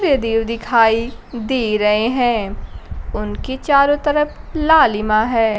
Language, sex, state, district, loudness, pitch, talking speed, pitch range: Hindi, female, Bihar, Kaimur, -16 LUFS, 230 Hz, 120 wpm, 220-280 Hz